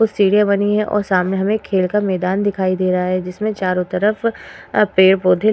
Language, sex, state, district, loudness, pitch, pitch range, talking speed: Hindi, female, Uttar Pradesh, Hamirpur, -17 LUFS, 195 Hz, 185-210 Hz, 230 wpm